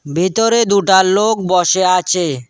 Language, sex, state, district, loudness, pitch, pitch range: Bengali, male, West Bengal, Cooch Behar, -13 LUFS, 185 Hz, 175-200 Hz